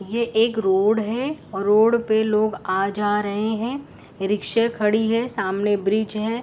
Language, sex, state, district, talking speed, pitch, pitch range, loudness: Hindi, female, Uttar Pradesh, Etah, 160 wpm, 215 Hz, 205-225 Hz, -21 LUFS